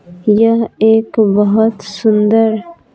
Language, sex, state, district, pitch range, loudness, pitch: Hindi, female, Bihar, Patna, 210-225 Hz, -12 LUFS, 220 Hz